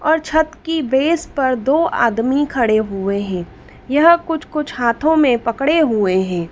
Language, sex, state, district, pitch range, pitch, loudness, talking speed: Hindi, female, Madhya Pradesh, Dhar, 225-315 Hz, 275 Hz, -17 LUFS, 165 wpm